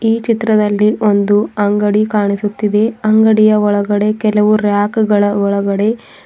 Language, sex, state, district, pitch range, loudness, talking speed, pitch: Kannada, female, Karnataka, Bidar, 205-215 Hz, -13 LUFS, 115 wpm, 210 Hz